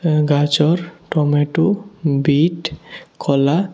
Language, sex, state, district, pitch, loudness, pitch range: Bengali, male, Tripura, West Tripura, 155 Hz, -17 LUFS, 145-175 Hz